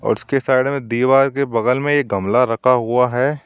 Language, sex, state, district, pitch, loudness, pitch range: Hindi, male, Uttar Pradesh, Shamli, 125 Hz, -17 LUFS, 120-135 Hz